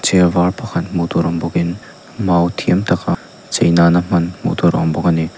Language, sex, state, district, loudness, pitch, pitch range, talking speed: Mizo, male, Mizoram, Aizawl, -16 LUFS, 85 Hz, 85-90 Hz, 225 wpm